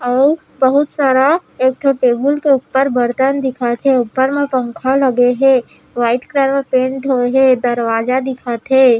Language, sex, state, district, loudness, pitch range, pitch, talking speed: Chhattisgarhi, female, Chhattisgarh, Raigarh, -14 LUFS, 245-275 Hz, 260 Hz, 160 wpm